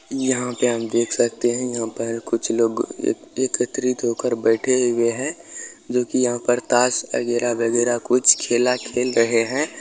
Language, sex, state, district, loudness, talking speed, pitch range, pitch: Hindi, male, Bihar, Bhagalpur, -20 LUFS, 160 wpm, 115-125 Hz, 120 Hz